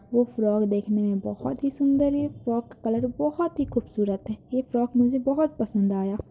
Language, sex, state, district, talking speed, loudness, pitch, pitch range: Hindi, female, Bihar, Kishanganj, 190 wpm, -25 LUFS, 240 Hz, 210-275 Hz